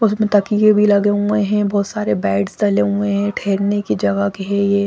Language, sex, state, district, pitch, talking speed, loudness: Hindi, female, Chandigarh, Chandigarh, 200 Hz, 220 wpm, -17 LUFS